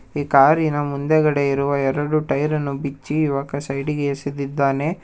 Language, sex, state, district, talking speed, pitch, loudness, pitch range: Kannada, male, Karnataka, Bangalore, 120 wpm, 140 Hz, -20 LUFS, 140-150 Hz